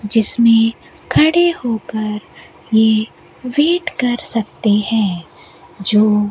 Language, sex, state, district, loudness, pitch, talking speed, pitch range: Hindi, female, Rajasthan, Bikaner, -15 LUFS, 220 Hz, 95 wpm, 210-240 Hz